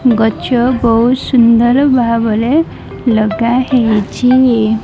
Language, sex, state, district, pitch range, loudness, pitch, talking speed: Odia, female, Odisha, Malkangiri, 225-250 Hz, -11 LUFS, 235 Hz, 60 wpm